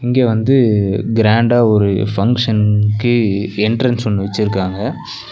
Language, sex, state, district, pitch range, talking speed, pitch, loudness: Tamil, male, Tamil Nadu, Nilgiris, 105-120 Hz, 90 wpm, 110 Hz, -15 LUFS